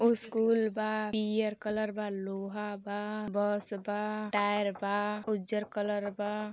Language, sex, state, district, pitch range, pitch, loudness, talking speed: Hindi, female, Uttar Pradesh, Gorakhpur, 205-215 Hz, 210 Hz, -33 LUFS, 140 wpm